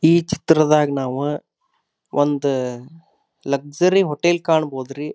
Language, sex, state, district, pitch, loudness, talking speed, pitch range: Kannada, male, Karnataka, Dharwad, 150 Hz, -19 LUFS, 95 wpm, 140-165 Hz